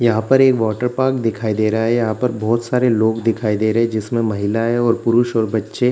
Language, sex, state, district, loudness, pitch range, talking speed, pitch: Hindi, male, Bihar, Gaya, -17 LUFS, 110-120 Hz, 255 wpm, 115 Hz